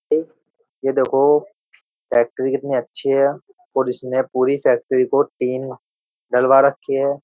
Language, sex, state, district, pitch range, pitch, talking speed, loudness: Hindi, male, Uttar Pradesh, Jyotiba Phule Nagar, 130-140 Hz, 135 Hz, 125 wpm, -19 LUFS